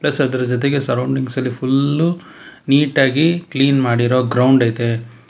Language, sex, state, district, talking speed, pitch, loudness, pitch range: Kannada, male, Karnataka, Bangalore, 100 wpm, 130 Hz, -16 LUFS, 125-140 Hz